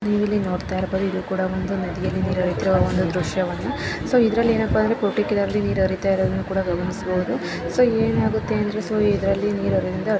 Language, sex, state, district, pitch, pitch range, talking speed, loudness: Kannada, male, Karnataka, Raichur, 200 Hz, 190-215 Hz, 130 wpm, -22 LUFS